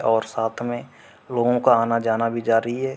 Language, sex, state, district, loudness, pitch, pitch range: Hindi, male, Uttar Pradesh, Hamirpur, -21 LUFS, 115 Hz, 115-120 Hz